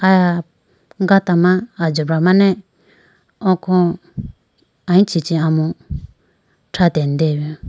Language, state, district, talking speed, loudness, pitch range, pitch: Idu Mishmi, Arunachal Pradesh, Lower Dibang Valley, 85 wpm, -16 LUFS, 160-185 Hz, 175 Hz